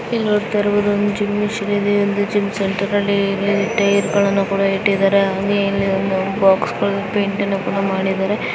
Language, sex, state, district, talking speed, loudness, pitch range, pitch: Kannada, female, Karnataka, Dakshina Kannada, 50 wpm, -17 LUFS, 195-205 Hz, 200 Hz